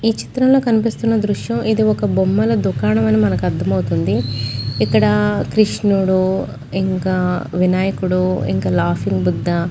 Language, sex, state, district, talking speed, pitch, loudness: Telugu, female, Andhra Pradesh, Chittoor, 115 wpm, 170 Hz, -17 LUFS